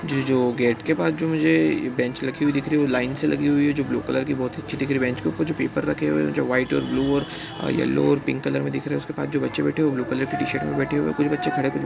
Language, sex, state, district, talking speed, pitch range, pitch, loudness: Hindi, male, Bihar, Bhagalpur, 345 wpm, 120-145 Hz, 135 Hz, -23 LUFS